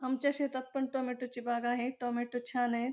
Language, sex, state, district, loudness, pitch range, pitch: Marathi, female, Maharashtra, Pune, -35 LUFS, 245-265 Hz, 250 Hz